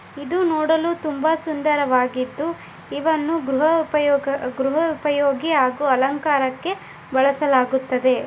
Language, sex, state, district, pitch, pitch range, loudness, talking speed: Kannada, female, Karnataka, Bijapur, 290 Hz, 265-315 Hz, -20 LUFS, 80 wpm